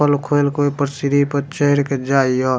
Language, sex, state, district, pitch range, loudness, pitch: Maithili, male, Bihar, Supaul, 140-145 Hz, -17 LUFS, 140 Hz